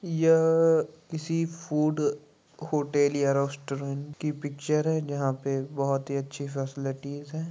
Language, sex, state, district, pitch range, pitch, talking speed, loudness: Hindi, male, Uttar Pradesh, Muzaffarnagar, 140-155 Hz, 145 Hz, 130 wpm, -28 LUFS